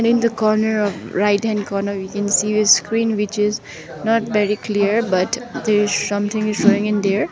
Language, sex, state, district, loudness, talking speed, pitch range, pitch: English, female, Sikkim, Gangtok, -18 LUFS, 205 wpm, 205-220 Hz, 210 Hz